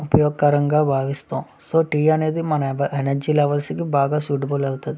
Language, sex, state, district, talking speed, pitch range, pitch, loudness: Telugu, male, Andhra Pradesh, Visakhapatnam, 145 wpm, 140-150 Hz, 145 Hz, -20 LUFS